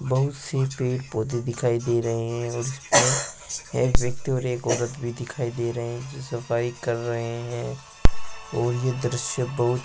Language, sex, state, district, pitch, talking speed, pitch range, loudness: Hindi, male, Rajasthan, Jaipur, 120 Hz, 175 wpm, 120-130 Hz, -26 LUFS